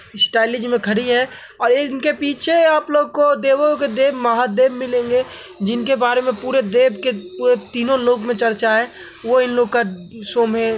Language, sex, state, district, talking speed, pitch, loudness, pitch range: Hindi, male, Uttar Pradesh, Hamirpur, 185 wpm, 245 Hz, -17 LUFS, 230-270 Hz